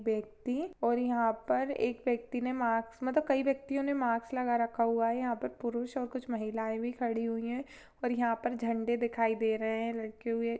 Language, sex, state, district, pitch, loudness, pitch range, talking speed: Hindi, female, Chhattisgarh, Sarguja, 235 Hz, -33 LUFS, 230-250 Hz, 215 wpm